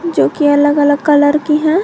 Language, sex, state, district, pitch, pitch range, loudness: Hindi, female, Jharkhand, Garhwa, 295 Hz, 290-310 Hz, -12 LUFS